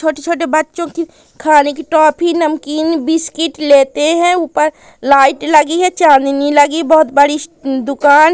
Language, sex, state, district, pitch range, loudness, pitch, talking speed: Hindi, female, Madhya Pradesh, Katni, 290-325 Hz, -12 LUFS, 310 Hz, 150 wpm